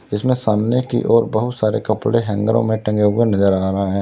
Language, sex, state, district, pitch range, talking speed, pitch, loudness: Hindi, male, Uttar Pradesh, Lalitpur, 105-115 Hz, 225 wpm, 110 Hz, -17 LUFS